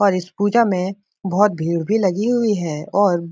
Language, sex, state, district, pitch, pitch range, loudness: Hindi, male, Bihar, Jahanabad, 195 Hz, 180-210 Hz, -19 LUFS